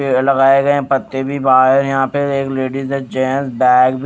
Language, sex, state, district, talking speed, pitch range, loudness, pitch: Hindi, male, Odisha, Nuapada, 205 wpm, 130-140 Hz, -14 LUFS, 135 Hz